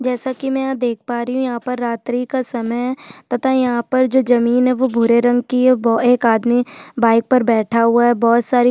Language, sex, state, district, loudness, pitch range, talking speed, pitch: Hindi, female, Chhattisgarh, Jashpur, -16 LUFS, 235-255 Hz, 255 wpm, 245 Hz